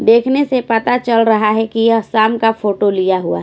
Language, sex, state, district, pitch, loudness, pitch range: Hindi, female, Odisha, Khordha, 225 Hz, -14 LUFS, 210-230 Hz